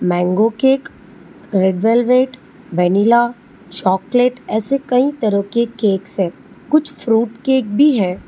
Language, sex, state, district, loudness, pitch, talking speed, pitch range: Hindi, female, Telangana, Hyderabad, -16 LUFS, 235 Hz, 130 wpm, 195-255 Hz